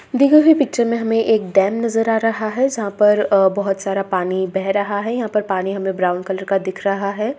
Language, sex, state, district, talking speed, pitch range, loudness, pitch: Hindi, female, Bihar, Saharsa, 250 wpm, 195-225 Hz, -18 LUFS, 205 Hz